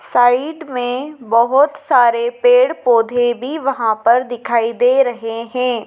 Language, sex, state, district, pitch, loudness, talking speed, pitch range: Hindi, female, Madhya Pradesh, Dhar, 245 Hz, -15 LUFS, 135 wpm, 235-260 Hz